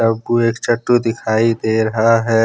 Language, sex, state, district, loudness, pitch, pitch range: Hindi, male, Jharkhand, Deoghar, -16 LUFS, 115 Hz, 110-115 Hz